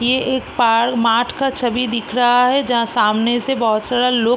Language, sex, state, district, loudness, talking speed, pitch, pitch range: Hindi, female, Bihar, East Champaran, -16 LUFS, 220 wpm, 245 Hz, 230-250 Hz